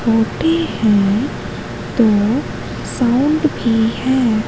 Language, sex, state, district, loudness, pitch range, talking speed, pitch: Hindi, female, Madhya Pradesh, Katni, -16 LUFS, 220-265 Hz, 80 wpm, 230 Hz